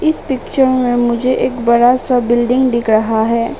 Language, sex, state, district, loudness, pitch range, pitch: Hindi, female, Arunachal Pradesh, Papum Pare, -14 LUFS, 235-255 Hz, 245 Hz